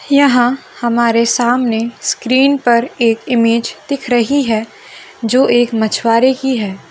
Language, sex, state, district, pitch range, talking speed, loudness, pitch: Hindi, female, Bihar, Kishanganj, 230-255 Hz, 130 wpm, -14 LUFS, 240 Hz